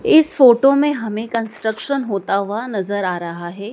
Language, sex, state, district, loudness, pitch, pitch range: Hindi, female, Madhya Pradesh, Dhar, -18 LUFS, 220 Hz, 200-270 Hz